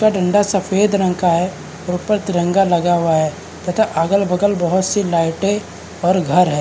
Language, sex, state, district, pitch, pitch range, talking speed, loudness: Hindi, male, Uttarakhand, Uttarkashi, 185 Hz, 175-200 Hz, 180 wpm, -17 LUFS